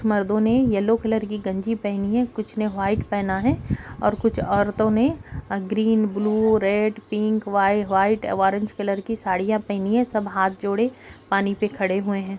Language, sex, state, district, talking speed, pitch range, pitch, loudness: Hindi, female, Uttar Pradesh, Jalaun, 185 wpm, 200-220 Hz, 210 Hz, -22 LUFS